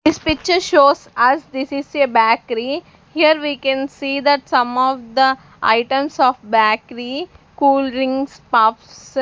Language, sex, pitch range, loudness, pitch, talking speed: English, female, 245-285 Hz, -17 LUFS, 270 Hz, 145 wpm